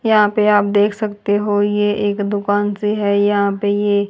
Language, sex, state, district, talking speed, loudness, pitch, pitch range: Hindi, female, Haryana, Charkhi Dadri, 220 wpm, -16 LUFS, 205 Hz, 205-210 Hz